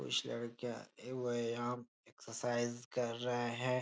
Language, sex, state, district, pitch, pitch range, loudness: Hindi, male, Bihar, Jahanabad, 120 Hz, 120-125 Hz, -40 LUFS